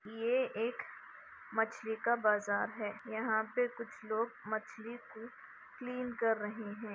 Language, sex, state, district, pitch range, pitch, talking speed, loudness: Hindi, female, Chhattisgarh, Bastar, 220-235 Hz, 225 Hz, 140 wpm, -37 LUFS